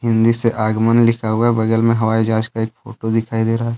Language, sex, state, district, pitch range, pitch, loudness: Hindi, male, Jharkhand, Deoghar, 110-115 Hz, 115 Hz, -17 LUFS